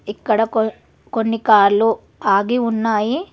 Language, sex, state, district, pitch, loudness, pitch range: Telugu, female, Telangana, Hyderabad, 225 Hz, -17 LUFS, 210-230 Hz